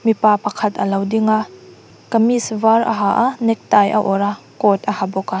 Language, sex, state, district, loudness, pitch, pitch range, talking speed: Mizo, female, Mizoram, Aizawl, -17 LUFS, 210 Hz, 200-225 Hz, 210 wpm